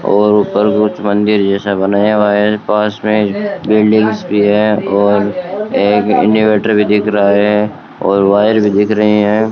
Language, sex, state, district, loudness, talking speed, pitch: Hindi, male, Rajasthan, Bikaner, -12 LUFS, 165 wpm, 105 Hz